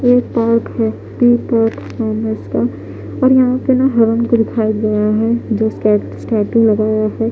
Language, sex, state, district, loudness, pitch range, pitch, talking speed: Hindi, female, Haryana, Jhajjar, -15 LUFS, 215-240 Hz, 225 Hz, 180 wpm